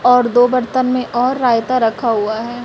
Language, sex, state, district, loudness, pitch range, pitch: Hindi, female, Chhattisgarh, Raipur, -15 LUFS, 230-255 Hz, 245 Hz